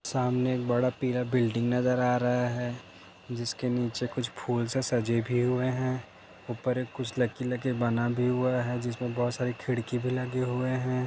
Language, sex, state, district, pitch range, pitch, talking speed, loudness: Hindi, male, Maharashtra, Dhule, 120-125 Hz, 125 Hz, 175 wpm, -29 LUFS